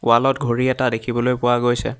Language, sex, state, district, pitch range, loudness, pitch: Assamese, male, Assam, Hailakandi, 120-130 Hz, -19 LUFS, 120 Hz